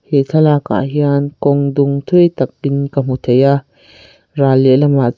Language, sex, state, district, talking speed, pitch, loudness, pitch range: Mizo, female, Mizoram, Aizawl, 160 wpm, 140 Hz, -13 LUFS, 130-145 Hz